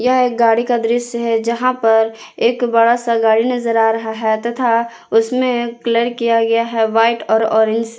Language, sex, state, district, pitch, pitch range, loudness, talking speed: Hindi, female, Jharkhand, Palamu, 230 Hz, 225-240 Hz, -15 LUFS, 195 wpm